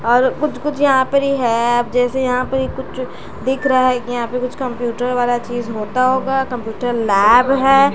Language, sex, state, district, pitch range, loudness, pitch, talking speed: Hindi, female, Bihar, Patna, 240-265 Hz, -17 LUFS, 250 Hz, 190 wpm